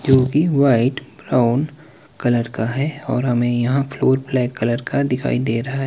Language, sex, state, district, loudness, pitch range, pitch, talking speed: Hindi, male, Himachal Pradesh, Shimla, -19 LUFS, 120-140 Hz, 130 Hz, 185 wpm